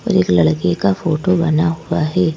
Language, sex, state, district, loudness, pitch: Hindi, female, Madhya Pradesh, Bhopal, -16 LUFS, 155 Hz